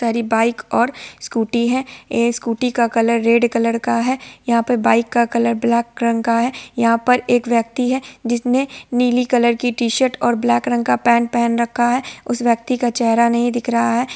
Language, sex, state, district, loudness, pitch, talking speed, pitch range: Hindi, female, Bihar, Sitamarhi, -17 LUFS, 235 Hz, 210 wpm, 230-245 Hz